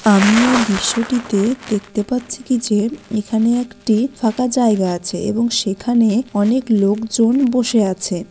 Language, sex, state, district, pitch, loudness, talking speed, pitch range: Bengali, female, West Bengal, Dakshin Dinajpur, 225 Hz, -17 LUFS, 135 wpm, 205-245 Hz